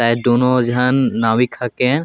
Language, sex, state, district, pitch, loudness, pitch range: Sadri, male, Chhattisgarh, Jashpur, 125 Hz, -16 LUFS, 115-125 Hz